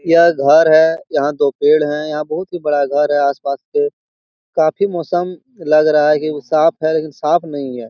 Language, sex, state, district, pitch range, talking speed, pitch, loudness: Hindi, male, Bihar, Jahanabad, 150-170 Hz, 220 wpm, 155 Hz, -15 LUFS